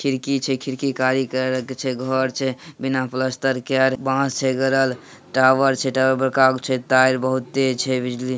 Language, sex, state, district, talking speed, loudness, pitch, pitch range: Hindi, male, Bihar, Samastipur, 195 wpm, -20 LUFS, 130 Hz, 130-135 Hz